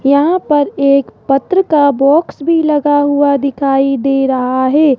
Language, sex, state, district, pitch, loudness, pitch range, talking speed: Hindi, female, Rajasthan, Jaipur, 280 Hz, -12 LUFS, 275-295 Hz, 155 wpm